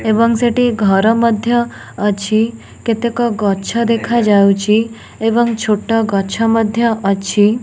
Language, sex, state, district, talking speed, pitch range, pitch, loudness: Odia, female, Odisha, Nuapada, 110 wpm, 205-235 Hz, 225 Hz, -15 LUFS